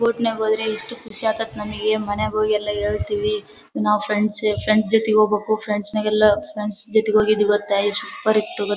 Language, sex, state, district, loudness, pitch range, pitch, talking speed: Kannada, female, Karnataka, Bellary, -18 LUFS, 210-220 Hz, 215 Hz, 180 wpm